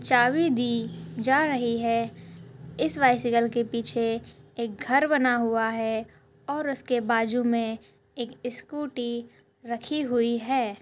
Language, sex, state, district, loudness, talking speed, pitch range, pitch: Hindi, female, Chhattisgarh, Rajnandgaon, -26 LUFS, 130 wpm, 230-260 Hz, 240 Hz